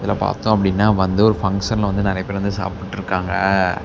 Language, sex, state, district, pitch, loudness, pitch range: Tamil, male, Tamil Nadu, Namakkal, 100 Hz, -19 LUFS, 95-100 Hz